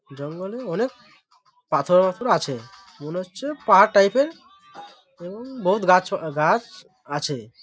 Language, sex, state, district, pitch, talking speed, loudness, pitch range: Bengali, male, West Bengal, Malda, 190 Hz, 135 wpm, -21 LUFS, 160-250 Hz